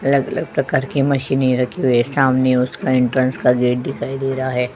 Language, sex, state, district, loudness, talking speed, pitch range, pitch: Hindi, female, Uttar Pradesh, Jyotiba Phule Nagar, -18 LUFS, 200 wpm, 125-135 Hz, 130 Hz